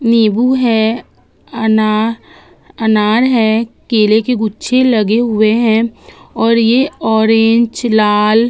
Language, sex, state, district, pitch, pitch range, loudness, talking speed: Hindi, female, Uttar Pradesh, Budaun, 225 Hz, 220-235 Hz, -12 LUFS, 115 wpm